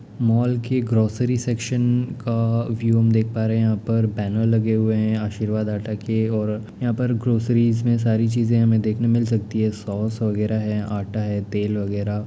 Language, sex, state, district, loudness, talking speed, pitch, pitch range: Hindi, male, Bihar, Darbhanga, -21 LUFS, 200 wpm, 110 Hz, 105-115 Hz